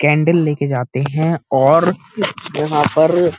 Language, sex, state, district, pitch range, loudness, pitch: Hindi, male, Uttar Pradesh, Muzaffarnagar, 145-170 Hz, -16 LUFS, 155 Hz